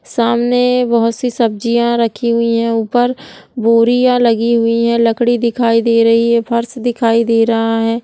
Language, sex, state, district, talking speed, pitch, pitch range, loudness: Hindi, female, Bihar, Jahanabad, 170 wpm, 235 Hz, 230-240 Hz, -13 LUFS